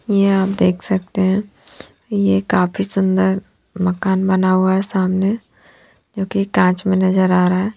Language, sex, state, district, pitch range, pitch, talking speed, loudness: Hindi, female, Haryana, Jhajjar, 185-195 Hz, 190 Hz, 160 wpm, -17 LUFS